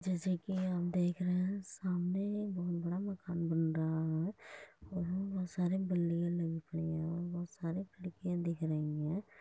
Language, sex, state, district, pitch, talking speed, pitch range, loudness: Hindi, female, Uttar Pradesh, Muzaffarnagar, 175 Hz, 170 wpm, 165-185 Hz, -37 LUFS